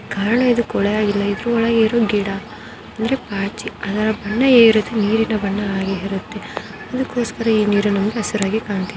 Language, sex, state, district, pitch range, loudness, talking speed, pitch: Kannada, female, Karnataka, Gulbarga, 200-230 Hz, -18 LUFS, 140 wpm, 215 Hz